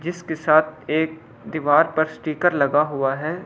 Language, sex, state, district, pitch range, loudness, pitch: Hindi, male, Delhi, New Delhi, 150-160 Hz, -20 LUFS, 155 Hz